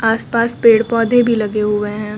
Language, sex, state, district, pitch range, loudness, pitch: Hindi, female, Uttar Pradesh, Lucknow, 210-230 Hz, -15 LUFS, 225 Hz